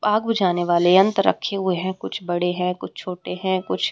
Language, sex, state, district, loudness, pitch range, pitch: Hindi, female, Haryana, Rohtak, -21 LUFS, 180-195 Hz, 185 Hz